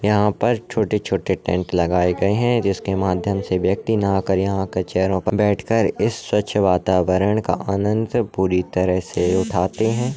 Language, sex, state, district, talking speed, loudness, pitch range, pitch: Hindi, male, Maharashtra, Solapur, 165 wpm, -20 LUFS, 90-105 Hz, 95 Hz